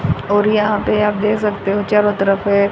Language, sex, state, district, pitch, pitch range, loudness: Hindi, female, Haryana, Rohtak, 205 Hz, 200-210 Hz, -16 LUFS